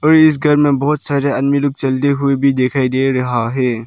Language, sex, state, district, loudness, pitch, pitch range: Hindi, male, Arunachal Pradesh, Lower Dibang Valley, -14 LUFS, 140 Hz, 130-145 Hz